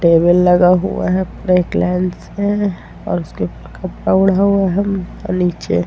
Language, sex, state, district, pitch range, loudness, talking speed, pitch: Hindi, female, Bihar, Vaishali, 180-195 Hz, -16 LUFS, 145 wpm, 185 Hz